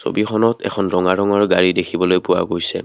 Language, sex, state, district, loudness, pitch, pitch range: Assamese, male, Assam, Kamrup Metropolitan, -17 LUFS, 90 Hz, 90-100 Hz